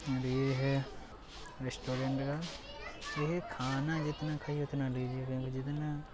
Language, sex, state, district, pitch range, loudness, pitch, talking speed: Hindi, male, Uttar Pradesh, Hamirpur, 130-150 Hz, -37 LUFS, 135 Hz, 115 wpm